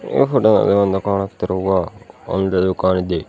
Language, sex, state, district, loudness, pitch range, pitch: Kannada, male, Karnataka, Bidar, -17 LUFS, 95-100 Hz, 95 Hz